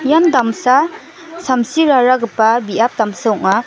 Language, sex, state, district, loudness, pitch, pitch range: Garo, female, Meghalaya, West Garo Hills, -14 LUFS, 250 Hz, 225-300 Hz